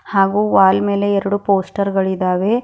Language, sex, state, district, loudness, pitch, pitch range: Kannada, female, Karnataka, Bidar, -16 LUFS, 200 Hz, 190-200 Hz